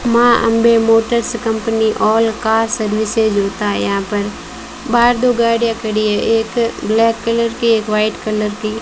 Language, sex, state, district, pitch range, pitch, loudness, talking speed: Hindi, female, Rajasthan, Bikaner, 215-230 Hz, 225 Hz, -15 LUFS, 165 wpm